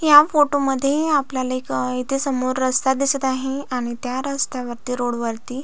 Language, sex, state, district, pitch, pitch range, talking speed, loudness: Marathi, female, Maharashtra, Solapur, 260 Hz, 250-275 Hz, 180 wpm, -21 LUFS